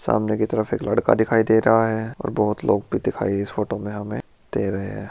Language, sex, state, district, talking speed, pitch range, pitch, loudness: Hindi, male, Rajasthan, Churu, 245 wpm, 100-110 Hz, 105 Hz, -22 LUFS